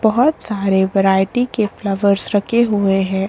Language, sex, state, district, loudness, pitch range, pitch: Hindi, female, Chhattisgarh, Korba, -16 LUFS, 195-220 Hz, 200 Hz